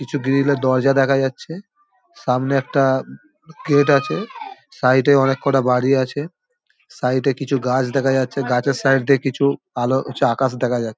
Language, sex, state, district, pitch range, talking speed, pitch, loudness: Bengali, male, West Bengal, Dakshin Dinajpur, 130-145 Hz, 155 wpm, 135 Hz, -18 LUFS